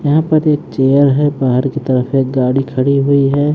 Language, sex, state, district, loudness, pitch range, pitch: Hindi, male, Haryana, Jhajjar, -13 LUFS, 130-145 Hz, 140 Hz